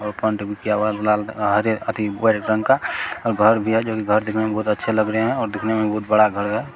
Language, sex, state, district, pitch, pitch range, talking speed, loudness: Hindi, male, Bihar, Jamui, 110 Hz, 105-110 Hz, 265 wpm, -20 LUFS